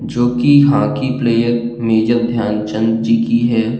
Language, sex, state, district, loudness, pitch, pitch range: Hindi, male, Uttar Pradesh, Jalaun, -14 LUFS, 115 Hz, 115-120 Hz